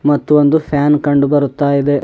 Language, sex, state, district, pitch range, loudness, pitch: Kannada, male, Karnataka, Bidar, 140-150 Hz, -13 LUFS, 145 Hz